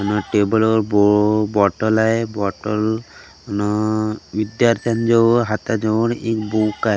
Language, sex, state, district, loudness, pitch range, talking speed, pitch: Marathi, male, Maharashtra, Gondia, -18 LUFS, 105-115 Hz, 130 wpm, 110 Hz